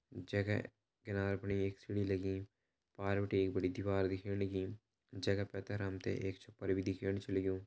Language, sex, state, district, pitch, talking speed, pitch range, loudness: Garhwali, male, Uttarakhand, Uttarkashi, 100 Hz, 170 wpm, 95-100 Hz, -39 LUFS